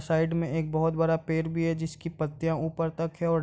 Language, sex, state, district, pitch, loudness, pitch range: Hindi, male, Bihar, Gopalganj, 165 Hz, -29 LUFS, 160-165 Hz